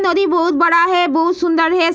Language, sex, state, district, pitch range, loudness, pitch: Hindi, female, Bihar, Sitamarhi, 335-355 Hz, -14 LUFS, 340 Hz